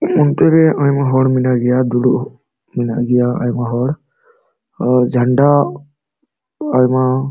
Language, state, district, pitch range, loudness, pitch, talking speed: Santali, Jharkhand, Sahebganj, 125-145 Hz, -14 LUFS, 130 Hz, 130 wpm